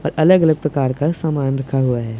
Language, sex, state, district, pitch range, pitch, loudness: Hindi, male, Punjab, Pathankot, 135-155 Hz, 140 Hz, -17 LUFS